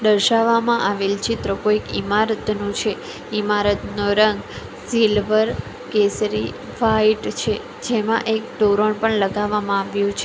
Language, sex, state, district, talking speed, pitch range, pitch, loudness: Gujarati, female, Gujarat, Valsad, 115 wpm, 205-220 Hz, 210 Hz, -20 LUFS